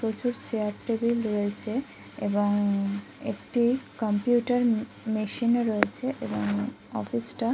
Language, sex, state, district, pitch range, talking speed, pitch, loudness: Bengali, female, West Bengal, Kolkata, 205-240 Hz, 105 wpm, 220 Hz, -28 LUFS